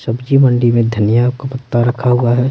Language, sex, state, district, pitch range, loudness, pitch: Hindi, male, Bihar, Patna, 120-130 Hz, -13 LUFS, 125 Hz